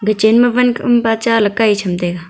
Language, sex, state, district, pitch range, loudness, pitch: Wancho, female, Arunachal Pradesh, Longding, 200-240 Hz, -13 LUFS, 220 Hz